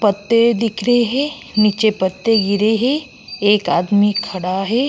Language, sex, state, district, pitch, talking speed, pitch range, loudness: Hindi, female, Uttar Pradesh, Jyotiba Phule Nagar, 215 Hz, 145 wpm, 205-235 Hz, -16 LUFS